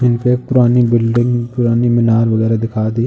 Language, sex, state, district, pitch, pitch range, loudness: Hindi, male, Uttar Pradesh, Jalaun, 120 Hz, 115-120 Hz, -14 LUFS